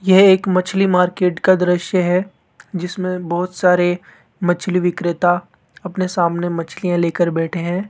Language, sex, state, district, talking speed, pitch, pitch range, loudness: Hindi, male, Rajasthan, Jaipur, 135 wpm, 180 Hz, 175-185 Hz, -17 LUFS